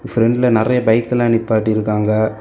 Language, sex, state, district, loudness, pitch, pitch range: Tamil, male, Tamil Nadu, Kanyakumari, -15 LUFS, 115 Hz, 110-120 Hz